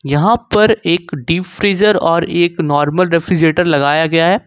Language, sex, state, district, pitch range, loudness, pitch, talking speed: Hindi, male, Jharkhand, Ranchi, 160-185 Hz, -13 LUFS, 170 Hz, 160 wpm